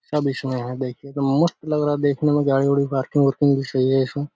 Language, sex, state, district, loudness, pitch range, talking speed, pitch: Hindi, male, Bihar, Araria, -21 LUFS, 135-145 Hz, 250 wpm, 140 Hz